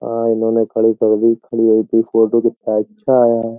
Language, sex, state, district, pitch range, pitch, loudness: Hindi, male, Uttar Pradesh, Jyotiba Phule Nagar, 110-115 Hz, 115 Hz, -15 LUFS